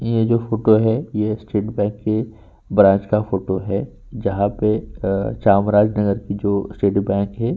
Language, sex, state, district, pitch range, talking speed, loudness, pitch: Hindi, male, Uttar Pradesh, Jyotiba Phule Nagar, 100-110 Hz, 165 wpm, -19 LUFS, 105 Hz